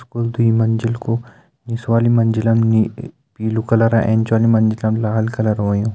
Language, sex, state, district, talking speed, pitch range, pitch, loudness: Hindi, male, Uttarakhand, Uttarkashi, 170 wpm, 110-115 Hz, 115 Hz, -17 LUFS